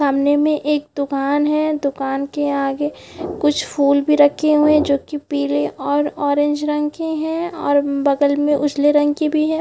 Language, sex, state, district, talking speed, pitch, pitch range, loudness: Hindi, female, Chhattisgarh, Bilaspur, 195 wpm, 290 Hz, 285-300 Hz, -18 LUFS